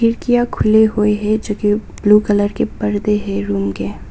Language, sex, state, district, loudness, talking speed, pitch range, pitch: Hindi, female, Nagaland, Kohima, -16 LUFS, 190 wpm, 205-220 Hz, 210 Hz